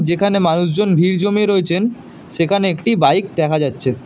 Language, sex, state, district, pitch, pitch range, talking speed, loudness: Bengali, male, Karnataka, Bangalore, 185 Hz, 165-200 Hz, 150 wpm, -16 LUFS